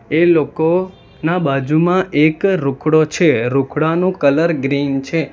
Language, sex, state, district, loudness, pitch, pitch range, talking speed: Gujarati, male, Gujarat, Valsad, -15 LUFS, 155 Hz, 140-170 Hz, 110 wpm